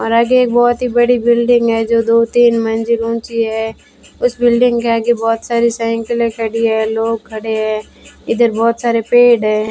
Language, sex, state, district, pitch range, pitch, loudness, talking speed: Hindi, female, Rajasthan, Bikaner, 225-240 Hz, 230 Hz, -14 LUFS, 190 wpm